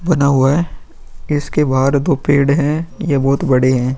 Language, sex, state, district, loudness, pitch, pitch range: Hindi, male, Bihar, Vaishali, -15 LUFS, 140 Hz, 135-150 Hz